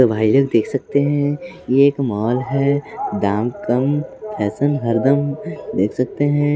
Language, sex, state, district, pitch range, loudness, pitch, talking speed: Hindi, male, Bihar, West Champaran, 120-145 Hz, -18 LUFS, 135 Hz, 145 wpm